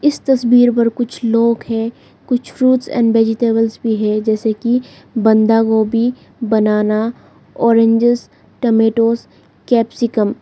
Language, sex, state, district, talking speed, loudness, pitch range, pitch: Hindi, female, Arunachal Pradesh, Lower Dibang Valley, 120 wpm, -15 LUFS, 225-240 Hz, 230 Hz